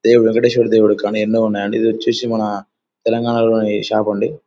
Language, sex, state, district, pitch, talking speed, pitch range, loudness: Telugu, male, Andhra Pradesh, Anantapur, 110 Hz, 145 wpm, 105-115 Hz, -16 LUFS